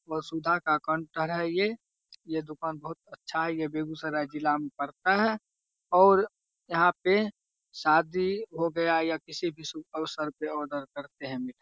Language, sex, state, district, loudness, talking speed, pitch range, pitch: Hindi, male, Bihar, Begusarai, -29 LUFS, 170 wpm, 155-175 Hz, 160 Hz